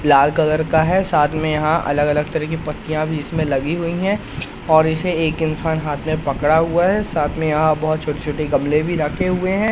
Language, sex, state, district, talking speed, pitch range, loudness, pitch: Hindi, male, Madhya Pradesh, Katni, 230 wpm, 150-165 Hz, -18 LUFS, 155 Hz